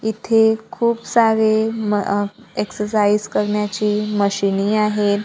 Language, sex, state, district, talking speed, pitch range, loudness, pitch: Marathi, female, Maharashtra, Gondia, 105 wpm, 205-220 Hz, -18 LUFS, 210 Hz